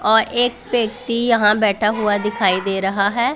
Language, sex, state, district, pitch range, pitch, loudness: Hindi, female, Punjab, Pathankot, 205-235 Hz, 215 Hz, -17 LUFS